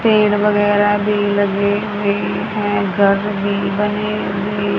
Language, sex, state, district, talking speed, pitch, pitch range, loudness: Hindi, female, Haryana, Charkhi Dadri, 125 wpm, 205 Hz, 200-210 Hz, -17 LUFS